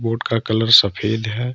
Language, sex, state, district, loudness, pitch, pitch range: Hindi, male, Jharkhand, Ranchi, -16 LUFS, 115 Hz, 110-115 Hz